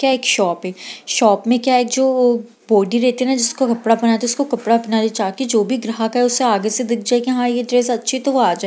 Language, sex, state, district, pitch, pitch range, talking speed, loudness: Hindi, female, Bihar, Gaya, 240 Hz, 225-255 Hz, 325 wpm, -17 LUFS